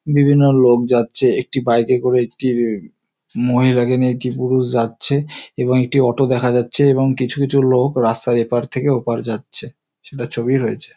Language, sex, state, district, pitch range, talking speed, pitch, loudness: Bengali, male, West Bengal, North 24 Parganas, 120-135 Hz, 165 wpm, 125 Hz, -16 LUFS